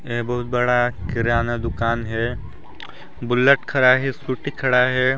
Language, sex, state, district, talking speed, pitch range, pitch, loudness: Hindi, male, Chhattisgarh, Sarguja, 140 wpm, 115-130 Hz, 120 Hz, -20 LUFS